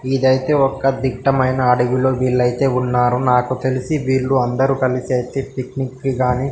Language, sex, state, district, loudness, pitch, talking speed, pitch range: Telugu, male, Telangana, Nalgonda, -17 LUFS, 130 Hz, 145 wpm, 125-135 Hz